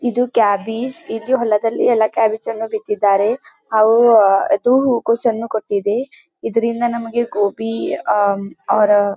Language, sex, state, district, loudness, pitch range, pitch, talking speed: Kannada, female, Karnataka, Dharwad, -17 LUFS, 210-235 Hz, 225 Hz, 105 wpm